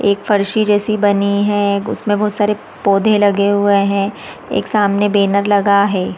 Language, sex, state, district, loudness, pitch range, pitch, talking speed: Hindi, female, Chhattisgarh, Raigarh, -15 LUFS, 200-210 Hz, 205 Hz, 165 wpm